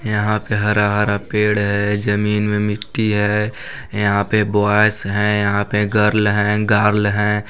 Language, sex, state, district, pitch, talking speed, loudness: Hindi, male, Chhattisgarh, Balrampur, 105 Hz, 160 wpm, -17 LUFS